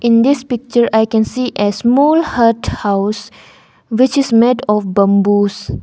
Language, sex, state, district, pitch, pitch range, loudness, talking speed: English, female, Arunachal Pradesh, Longding, 230 Hz, 205-250 Hz, -13 LUFS, 155 wpm